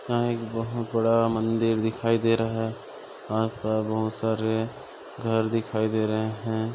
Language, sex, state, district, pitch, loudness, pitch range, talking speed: Hindi, male, Jharkhand, Sahebganj, 115 Hz, -26 LUFS, 110-115 Hz, 160 wpm